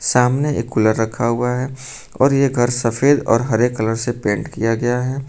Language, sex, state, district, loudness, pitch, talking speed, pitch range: Hindi, male, Uttar Pradesh, Lucknow, -18 LUFS, 120 Hz, 205 wpm, 115-130 Hz